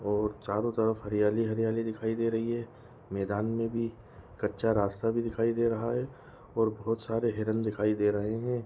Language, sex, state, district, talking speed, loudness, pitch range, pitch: Hindi, male, Goa, North and South Goa, 180 wpm, -31 LUFS, 105-115 Hz, 115 Hz